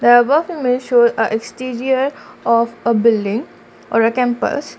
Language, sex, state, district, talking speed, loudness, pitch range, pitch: English, female, Assam, Kamrup Metropolitan, 100 wpm, -16 LUFS, 230-255 Hz, 240 Hz